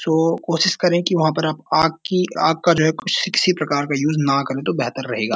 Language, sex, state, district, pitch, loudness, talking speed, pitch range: Hindi, male, Uttarakhand, Uttarkashi, 160 Hz, -19 LUFS, 235 wpm, 150-175 Hz